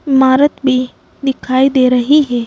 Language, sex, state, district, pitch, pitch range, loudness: Hindi, female, Madhya Pradesh, Bhopal, 265 Hz, 255-275 Hz, -12 LUFS